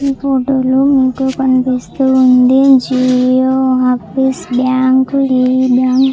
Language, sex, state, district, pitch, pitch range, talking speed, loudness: Telugu, female, Andhra Pradesh, Chittoor, 260 Hz, 255-265 Hz, 115 wpm, -12 LUFS